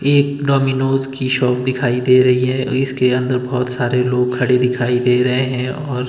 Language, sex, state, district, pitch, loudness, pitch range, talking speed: Hindi, male, Himachal Pradesh, Shimla, 125 Hz, -16 LUFS, 125-130 Hz, 185 wpm